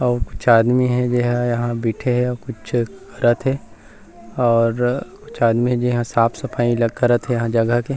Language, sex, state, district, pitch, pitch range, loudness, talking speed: Chhattisgarhi, male, Chhattisgarh, Rajnandgaon, 120 Hz, 115-125 Hz, -19 LUFS, 190 wpm